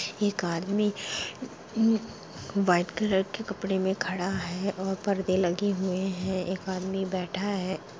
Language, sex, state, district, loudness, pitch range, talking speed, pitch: Hindi, female, Chhattisgarh, Rajnandgaon, -29 LUFS, 185-200 Hz, 135 wpm, 190 Hz